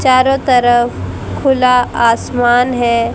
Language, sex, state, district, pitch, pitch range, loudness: Hindi, female, Haryana, Jhajjar, 245 Hz, 240-255 Hz, -12 LUFS